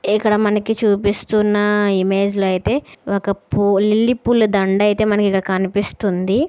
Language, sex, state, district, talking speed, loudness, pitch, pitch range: Telugu, female, Andhra Pradesh, Chittoor, 120 wpm, -17 LUFS, 205 Hz, 195-210 Hz